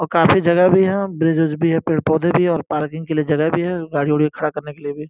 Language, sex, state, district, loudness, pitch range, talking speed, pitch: Hindi, male, Uttar Pradesh, Gorakhpur, -17 LUFS, 150-170 Hz, 330 wpm, 160 Hz